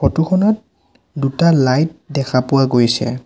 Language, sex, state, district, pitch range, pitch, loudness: Assamese, male, Assam, Sonitpur, 130-160 Hz, 140 Hz, -16 LUFS